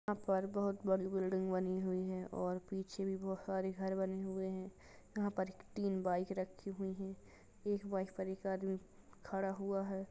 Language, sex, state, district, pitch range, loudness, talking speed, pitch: Hindi, female, Uttar Pradesh, Jalaun, 190-195 Hz, -40 LUFS, 190 wpm, 190 Hz